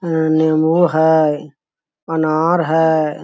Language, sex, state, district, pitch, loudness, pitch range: Magahi, male, Bihar, Lakhisarai, 160 Hz, -15 LUFS, 155-160 Hz